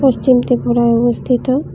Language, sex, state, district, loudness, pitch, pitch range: Bengali, female, Tripura, West Tripura, -14 LUFS, 245 Hz, 240-260 Hz